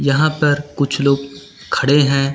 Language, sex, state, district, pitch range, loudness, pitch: Hindi, male, Uttar Pradesh, Lucknow, 140-145 Hz, -16 LUFS, 140 Hz